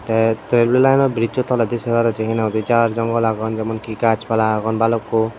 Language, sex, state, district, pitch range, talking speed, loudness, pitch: Chakma, male, Tripura, Dhalai, 110-115 Hz, 190 wpm, -18 LUFS, 115 Hz